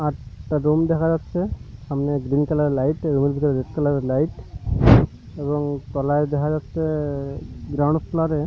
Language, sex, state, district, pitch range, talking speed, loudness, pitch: Bengali, male, Odisha, Malkangiri, 140-155 Hz, 165 wpm, -22 LUFS, 145 Hz